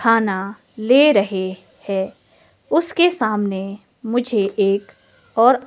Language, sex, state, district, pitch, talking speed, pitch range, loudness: Hindi, female, Himachal Pradesh, Shimla, 215 Hz, 95 wpm, 195-245 Hz, -18 LUFS